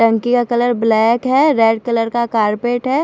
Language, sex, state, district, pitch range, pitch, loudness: Hindi, female, Punjab, Fazilka, 225-245 Hz, 235 Hz, -15 LUFS